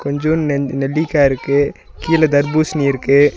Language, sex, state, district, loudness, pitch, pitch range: Tamil, male, Tamil Nadu, Nilgiris, -16 LUFS, 145 Hz, 140-155 Hz